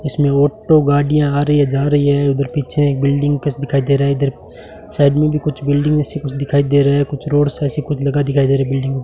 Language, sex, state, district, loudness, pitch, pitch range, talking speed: Hindi, male, Rajasthan, Bikaner, -15 LUFS, 145 Hz, 140-145 Hz, 280 wpm